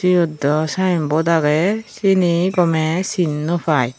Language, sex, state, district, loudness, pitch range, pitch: Chakma, female, Tripura, Unakoti, -18 LUFS, 155-180 Hz, 170 Hz